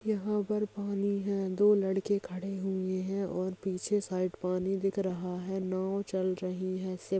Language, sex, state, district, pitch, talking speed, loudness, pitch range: Hindi, female, Maharashtra, Aurangabad, 190 Hz, 165 wpm, -32 LUFS, 185-200 Hz